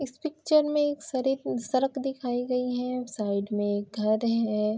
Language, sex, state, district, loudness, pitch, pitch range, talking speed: Hindi, female, Uttar Pradesh, Varanasi, -28 LUFS, 250 Hz, 215-270 Hz, 175 wpm